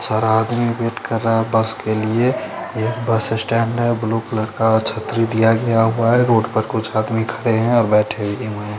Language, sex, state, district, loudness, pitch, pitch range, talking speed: Hindi, male, Chandigarh, Chandigarh, -18 LUFS, 115 Hz, 110-115 Hz, 225 wpm